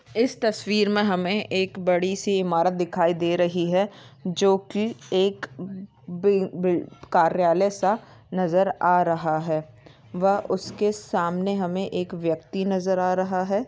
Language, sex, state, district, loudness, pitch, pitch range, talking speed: Hindi, female, Maharashtra, Aurangabad, -24 LUFS, 185 Hz, 175-195 Hz, 145 wpm